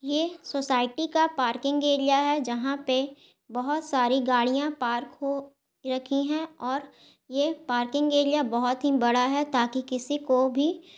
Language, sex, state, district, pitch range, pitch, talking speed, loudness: Hindi, female, Bihar, Gaya, 255-290 Hz, 275 Hz, 145 wpm, -26 LUFS